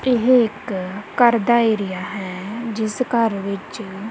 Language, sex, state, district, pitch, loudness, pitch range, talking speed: Punjabi, female, Punjab, Kapurthala, 215 Hz, -20 LUFS, 195-235 Hz, 130 wpm